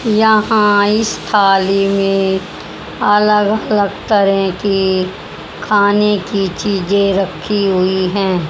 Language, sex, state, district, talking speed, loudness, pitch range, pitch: Hindi, male, Haryana, Jhajjar, 100 wpm, -14 LUFS, 190-210 Hz, 200 Hz